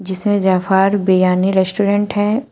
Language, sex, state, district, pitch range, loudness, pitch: Hindi, female, Uttar Pradesh, Shamli, 185-205 Hz, -15 LUFS, 195 Hz